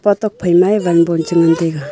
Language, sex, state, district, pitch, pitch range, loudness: Wancho, female, Arunachal Pradesh, Longding, 170 Hz, 165-200 Hz, -14 LUFS